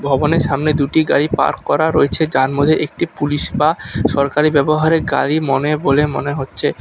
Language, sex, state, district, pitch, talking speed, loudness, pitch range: Bengali, male, West Bengal, Alipurduar, 145 Hz, 165 wpm, -16 LUFS, 140-155 Hz